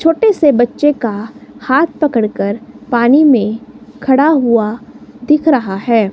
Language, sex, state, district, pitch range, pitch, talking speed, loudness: Hindi, female, Himachal Pradesh, Shimla, 230-295 Hz, 255 Hz, 135 wpm, -13 LUFS